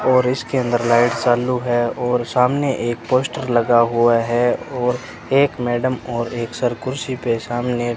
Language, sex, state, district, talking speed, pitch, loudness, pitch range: Hindi, male, Rajasthan, Bikaner, 175 wpm, 120 Hz, -19 LUFS, 120-130 Hz